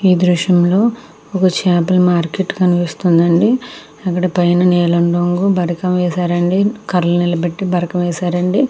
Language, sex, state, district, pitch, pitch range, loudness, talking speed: Telugu, female, Andhra Pradesh, Krishna, 180 Hz, 175-185 Hz, -15 LUFS, 110 wpm